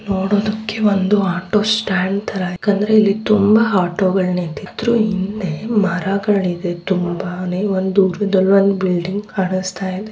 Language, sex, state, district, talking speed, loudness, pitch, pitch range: Kannada, female, Karnataka, Bellary, 95 wpm, -17 LUFS, 195 Hz, 185-205 Hz